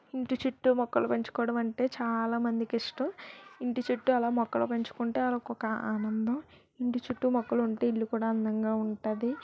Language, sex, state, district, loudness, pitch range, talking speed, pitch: Telugu, female, Andhra Pradesh, Visakhapatnam, -31 LUFS, 225-250 Hz, 50 wpm, 235 Hz